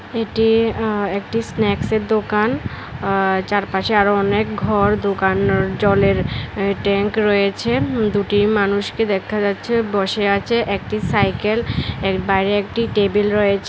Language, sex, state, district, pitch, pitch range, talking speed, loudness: Bengali, female, Tripura, West Tripura, 205 Hz, 200-215 Hz, 125 wpm, -18 LUFS